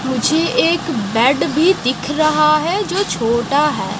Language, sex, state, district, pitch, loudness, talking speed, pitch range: Hindi, female, Haryana, Jhajjar, 295 Hz, -16 LUFS, 150 wpm, 240-320 Hz